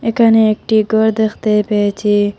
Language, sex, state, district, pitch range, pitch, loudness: Bengali, female, Assam, Hailakandi, 210-220 Hz, 215 Hz, -14 LUFS